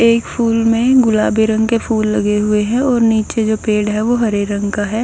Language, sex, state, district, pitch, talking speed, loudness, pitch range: Hindi, male, Odisha, Nuapada, 220 Hz, 240 wpm, -15 LUFS, 210-230 Hz